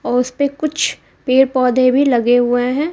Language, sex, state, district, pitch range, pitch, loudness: Hindi, female, Bihar, Kaimur, 245-280 Hz, 255 Hz, -15 LUFS